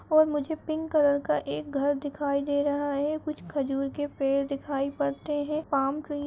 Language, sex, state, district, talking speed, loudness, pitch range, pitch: Hindi, female, Uttar Pradesh, Jyotiba Phule Nagar, 190 wpm, -28 LUFS, 275-295 Hz, 285 Hz